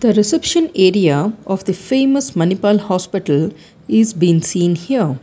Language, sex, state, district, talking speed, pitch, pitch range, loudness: English, female, Karnataka, Bangalore, 135 wpm, 195 Hz, 175-225 Hz, -15 LUFS